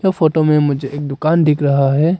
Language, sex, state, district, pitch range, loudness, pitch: Hindi, male, Arunachal Pradesh, Papum Pare, 140-160 Hz, -15 LUFS, 150 Hz